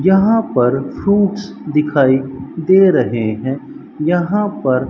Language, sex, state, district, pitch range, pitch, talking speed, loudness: Hindi, male, Rajasthan, Bikaner, 130-195 Hz, 150 Hz, 110 wpm, -15 LUFS